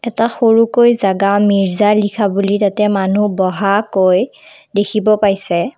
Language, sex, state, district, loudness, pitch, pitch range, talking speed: Assamese, female, Assam, Kamrup Metropolitan, -14 LUFS, 205 Hz, 195-215 Hz, 115 wpm